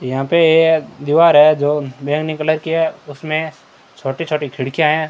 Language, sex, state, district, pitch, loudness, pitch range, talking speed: Hindi, male, Rajasthan, Bikaner, 155 Hz, -15 LUFS, 145-160 Hz, 175 wpm